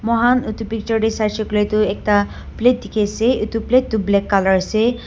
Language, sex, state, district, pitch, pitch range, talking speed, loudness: Nagamese, female, Nagaland, Dimapur, 220 Hz, 210-230 Hz, 200 wpm, -18 LUFS